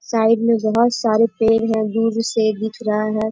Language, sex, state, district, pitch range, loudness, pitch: Hindi, female, Bihar, Bhagalpur, 220-230 Hz, -18 LUFS, 225 Hz